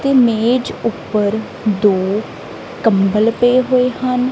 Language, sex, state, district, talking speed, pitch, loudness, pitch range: Punjabi, female, Punjab, Kapurthala, 110 wpm, 230 Hz, -15 LUFS, 210-250 Hz